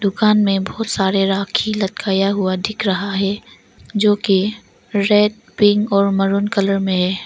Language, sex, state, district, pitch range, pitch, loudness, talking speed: Hindi, female, Arunachal Pradesh, Longding, 195-210 Hz, 200 Hz, -17 LUFS, 155 wpm